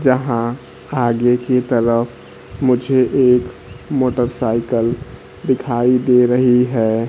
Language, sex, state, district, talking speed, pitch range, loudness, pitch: Hindi, male, Bihar, Kaimur, 95 wpm, 120-125 Hz, -16 LUFS, 125 Hz